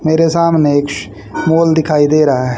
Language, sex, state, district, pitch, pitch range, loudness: Hindi, female, Haryana, Charkhi Dadri, 150 Hz, 140-160 Hz, -12 LUFS